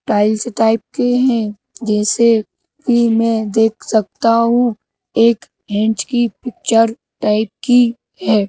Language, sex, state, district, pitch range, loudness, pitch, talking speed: Hindi, male, Madhya Pradesh, Bhopal, 215-240 Hz, -15 LUFS, 225 Hz, 120 wpm